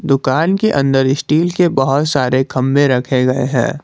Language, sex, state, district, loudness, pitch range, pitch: Hindi, male, Jharkhand, Garhwa, -14 LUFS, 130-150 Hz, 135 Hz